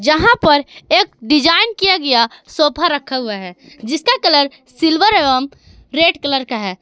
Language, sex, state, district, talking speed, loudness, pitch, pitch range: Hindi, female, Jharkhand, Garhwa, 160 wpm, -14 LUFS, 300 Hz, 260-340 Hz